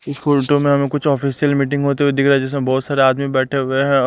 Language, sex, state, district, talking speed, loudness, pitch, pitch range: Hindi, male, Bihar, Kaimur, 265 wpm, -16 LUFS, 140 Hz, 135-145 Hz